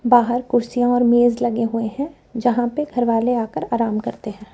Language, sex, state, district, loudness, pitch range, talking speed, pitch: Hindi, female, Rajasthan, Jaipur, -19 LUFS, 230-245 Hz, 210 wpm, 240 Hz